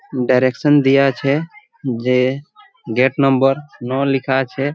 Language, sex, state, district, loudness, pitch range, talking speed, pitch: Bengali, male, West Bengal, Jhargram, -16 LUFS, 130-145 Hz, 115 wpm, 135 Hz